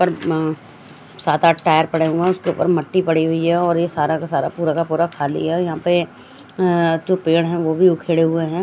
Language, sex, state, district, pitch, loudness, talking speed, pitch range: Hindi, female, Punjab, Fazilka, 165 Hz, -18 LUFS, 250 wpm, 160-175 Hz